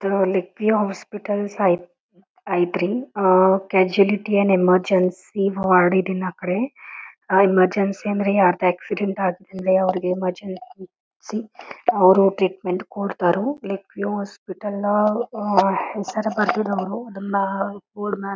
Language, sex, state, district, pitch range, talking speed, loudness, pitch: Kannada, female, Karnataka, Belgaum, 185-205 Hz, 90 wpm, -21 LUFS, 195 Hz